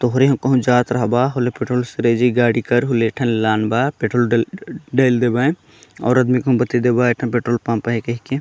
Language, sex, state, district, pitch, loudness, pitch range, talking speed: Chhattisgarhi, male, Chhattisgarh, Jashpur, 120 Hz, -17 LUFS, 115-125 Hz, 200 wpm